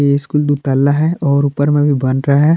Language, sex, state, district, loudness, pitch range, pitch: Hindi, male, Jharkhand, Palamu, -14 LUFS, 140-145 Hz, 145 Hz